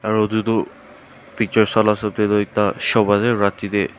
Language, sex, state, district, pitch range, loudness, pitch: Nagamese, male, Nagaland, Kohima, 100-110 Hz, -18 LUFS, 105 Hz